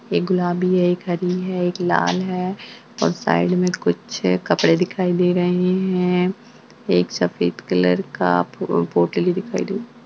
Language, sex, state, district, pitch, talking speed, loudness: Hindi, female, Uttarakhand, Tehri Garhwal, 180 Hz, 155 wpm, -20 LUFS